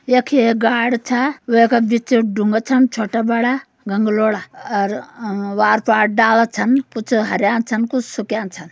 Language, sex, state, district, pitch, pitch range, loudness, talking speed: Garhwali, female, Uttarakhand, Uttarkashi, 230 Hz, 215-245 Hz, -17 LUFS, 165 wpm